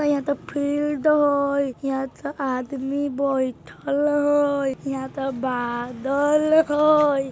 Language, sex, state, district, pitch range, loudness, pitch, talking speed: Bajjika, female, Bihar, Vaishali, 270-290 Hz, -22 LUFS, 280 Hz, 105 wpm